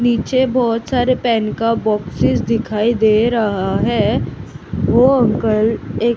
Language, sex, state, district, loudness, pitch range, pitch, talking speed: Hindi, female, Maharashtra, Mumbai Suburban, -16 LUFS, 215-240 Hz, 230 Hz, 125 wpm